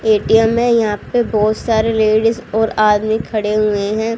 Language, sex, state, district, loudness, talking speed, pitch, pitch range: Hindi, female, Haryana, Jhajjar, -15 LUFS, 170 wpm, 220 Hz, 215-225 Hz